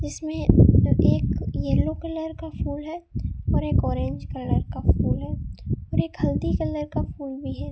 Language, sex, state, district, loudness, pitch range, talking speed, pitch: Hindi, female, Rajasthan, Bikaner, -24 LUFS, 295-325 Hz, 170 wpm, 315 Hz